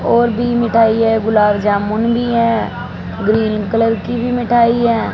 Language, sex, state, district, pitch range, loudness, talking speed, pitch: Hindi, female, Punjab, Fazilka, 220-235 Hz, -14 LUFS, 175 wpm, 225 Hz